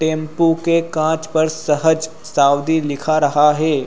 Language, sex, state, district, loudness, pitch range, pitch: Hindi, male, Bihar, Supaul, -17 LUFS, 150-160 Hz, 155 Hz